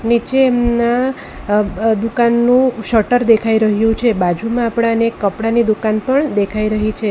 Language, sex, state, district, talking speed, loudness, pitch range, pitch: Gujarati, female, Gujarat, Valsad, 145 wpm, -15 LUFS, 215-240 Hz, 230 Hz